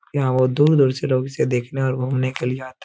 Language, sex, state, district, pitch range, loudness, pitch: Hindi, male, Bihar, Supaul, 130-135 Hz, -20 LUFS, 130 Hz